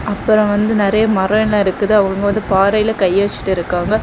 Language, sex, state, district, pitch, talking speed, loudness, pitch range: Tamil, female, Tamil Nadu, Kanyakumari, 205 Hz, 180 wpm, -15 LUFS, 195-215 Hz